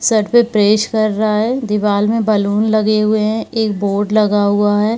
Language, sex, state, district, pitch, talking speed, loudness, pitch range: Hindi, female, Jharkhand, Jamtara, 215 Hz, 190 wpm, -14 LUFS, 205-220 Hz